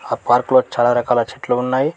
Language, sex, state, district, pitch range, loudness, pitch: Telugu, male, Telangana, Mahabubabad, 120-130 Hz, -17 LUFS, 125 Hz